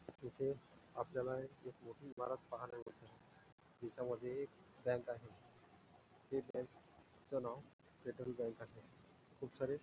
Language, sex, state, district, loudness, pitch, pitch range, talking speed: Marathi, male, Maharashtra, Nagpur, -47 LUFS, 125 Hz, 120-135 Hz, 115 wpm